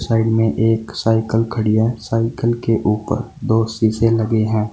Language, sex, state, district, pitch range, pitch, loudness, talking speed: Hindi, male, Uttar Pradesh, Saharanpur, 110-115 Hz, 115 Hz, -18 LUFS, 165 wpm